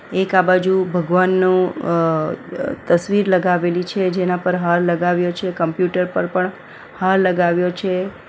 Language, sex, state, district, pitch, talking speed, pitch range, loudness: Gujarati, female, Gujarat, Valsad, 180 Hz, 135 wpm, 175-185 Hz, -18 LUFS